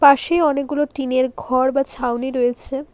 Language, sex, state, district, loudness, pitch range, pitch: Bengali, female, West Bengal, Alipurduar, -19 LUFS, 255-285 Hz, 270 Hz